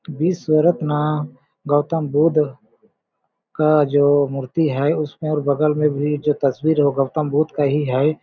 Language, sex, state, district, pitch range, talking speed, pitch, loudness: Hindi, male, Chhattisgarh, Balrampur, 145-155 Hz, 145 wpm, 150 Hz, -19 LUFS